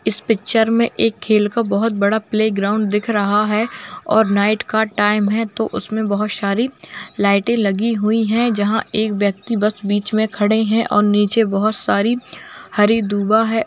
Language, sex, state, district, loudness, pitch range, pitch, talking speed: Hindi, female, Bihar, Jamui, -16 LUFS, 205-225 Hz, 215 Hz, 180 wpm